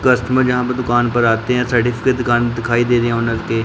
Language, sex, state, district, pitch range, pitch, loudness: Hindi, male, Punjab, Pathankot, 120-125 Hz, 120 Hz, -16 LUFS